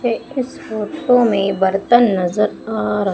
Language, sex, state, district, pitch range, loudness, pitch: Hindi, female, Madhya Pradesh, Umaria, 195-240 Hz, -17 LUFS, 215 Hz